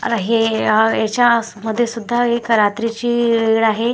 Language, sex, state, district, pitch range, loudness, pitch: Marathi, male, Maharashtra, Washim, 225-235 Hz, -16 LUFS, 230 Hz